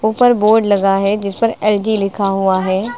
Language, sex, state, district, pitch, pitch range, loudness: Hindi, female, Uttar Pradesh, Lucknow, 205 Hz, 195-220 Hz, -14 LUFS